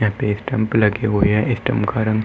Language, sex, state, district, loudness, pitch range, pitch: Hindi, male, Uttar Pradesh, Muzaffarnagar, -19 LUFS, 105-115 Hz, 110 Hz